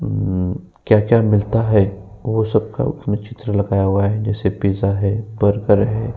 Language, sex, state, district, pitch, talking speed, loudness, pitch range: Hindi, male, Uttar Pradesh, Jyotiba Phule Nagar, 105 Hz, 155 wpm, -18 LUFS, 100-110 Hz